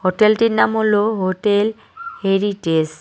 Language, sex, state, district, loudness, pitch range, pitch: Bengali, male, West Bengal, Cooch Behar, -17 LUFS, 185-220 Hz, 205 Hz